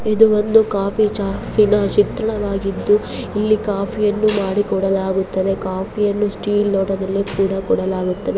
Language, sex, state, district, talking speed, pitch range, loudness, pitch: Kannada, female, Karnataka, Bellary, 115 wpm, 195-210 Hz, -18 LUFS, 200 Hz